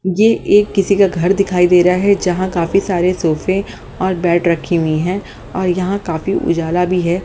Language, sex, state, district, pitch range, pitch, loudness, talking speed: Hindi, female, Haryana, Jhajjar, 175-195 Hz, 180 Hz, -15 LUFS, 200 wpm